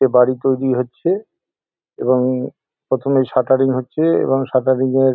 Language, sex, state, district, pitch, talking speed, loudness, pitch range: Bengali, male, West Bengal, Jalpaiguri, 130 Hz, 115 wpm, -17 LUFS, 130-135 Hz